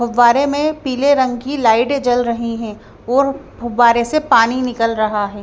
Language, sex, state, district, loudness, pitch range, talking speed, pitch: Hindi, female, Bihar, Patna, -15 LUFS, 230-275 Hz, 175 wpm, 245 Hz